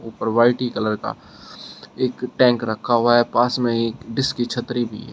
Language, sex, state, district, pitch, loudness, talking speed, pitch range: Hindi, male, Uttar Pradesh, Shamli, 120 Hz, -20 LUFS, 200 wpm, 115-125 Hz